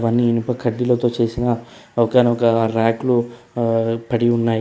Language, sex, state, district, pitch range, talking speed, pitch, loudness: Telugu, male, Telangana, Hyderabad, 115-120 Hz, 145 wpm, 120 Hz, -19 LUFS